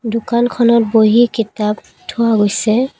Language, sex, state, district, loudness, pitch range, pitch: Assamese, female, Assam, Kamrup Metropolitan, -14 LUFS, 215-235 Hz, 230 Hz